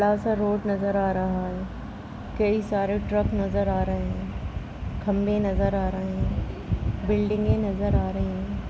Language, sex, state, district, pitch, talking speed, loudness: Hindi, female, Bihar, Sitamarhi, 185 Hz, 165 wpm, -26 LUFS